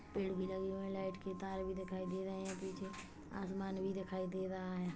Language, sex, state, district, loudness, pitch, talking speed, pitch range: Hindi, female, Chhattisgarh, Kabirdham, -43 LUFS, 190 Hz, 240 wpm, 185-190 Hz